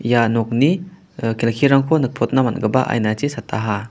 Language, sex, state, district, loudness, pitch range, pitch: Garo, male, Meghalaya, West Garo Hills, -18 LUFS, 115-140 Hz, 120 Hz